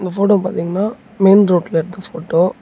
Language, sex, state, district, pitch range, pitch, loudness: Tamil, male, Tamil Nadu, Namakkal, 175-205 Hz, 190 Hz, -15 LUFS